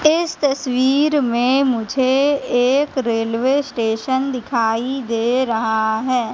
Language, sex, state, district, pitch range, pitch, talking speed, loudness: Hindi, female, Madhya Pradesh, Katni, 230-275 Hz, 255 Hz, 105 wpm, -18 LUFS